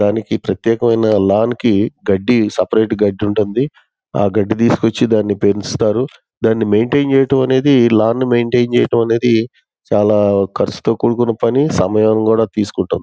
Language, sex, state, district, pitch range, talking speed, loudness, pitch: Telugu, male, Andhra Pradesh, Guntur, 105-120 Hz, 135 wpm, -14 LUFS, 110 Hz